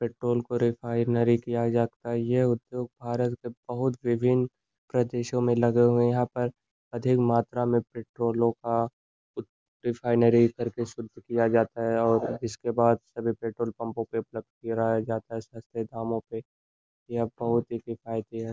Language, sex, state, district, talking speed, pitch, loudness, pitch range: Hindi, male, Uttar Pradesh, Gorakhpur, 160 wpm, 115 Hz, -27 LUFS, 115-120 Hz